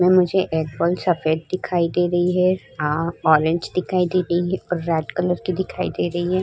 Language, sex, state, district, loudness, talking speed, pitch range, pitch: Hindi, female, Uttar Pradesh, Muzaffarnagar, -21 LUFS, 215 wpm, 165-180 Hz, 175 Hz